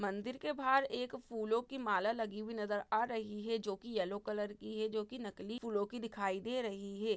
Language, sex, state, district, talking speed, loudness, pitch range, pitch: Hindi, female, Chhattisgarh, Bastar, 235 wpm, -39 LUFS, 205-235 Hz, 220 Hz